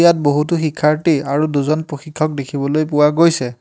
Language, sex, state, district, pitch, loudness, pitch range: Assamese, male, Assam, Hailakandi, 150 Hz, -16 LUFS, 145-155 Hz